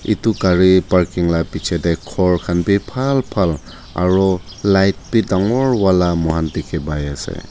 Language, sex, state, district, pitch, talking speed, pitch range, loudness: Nagamese, male, Nagaland, Dimapur, 90 Hz, 160 wpm, 85-100 Hz, -17 LUFS